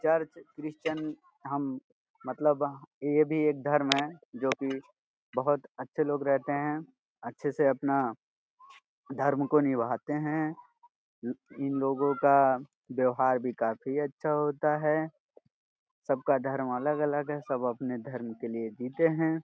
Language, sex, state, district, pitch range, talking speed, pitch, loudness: Hindi, male, Uttar Pradesh, Gorakhpur, 135-155 Hz, 135 wpm, 145 Hz, -30 LUFS